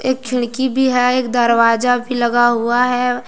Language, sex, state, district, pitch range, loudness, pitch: Hindi, female, Jharkhand, Deoghar, 240-250 Hz, -15 LUFS, 245 Hz